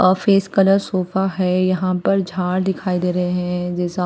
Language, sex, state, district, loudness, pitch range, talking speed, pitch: Hindi, female, Bihar, Patna, -19 LUFS, 180-190 Hz, 175 wpm, 185 Hz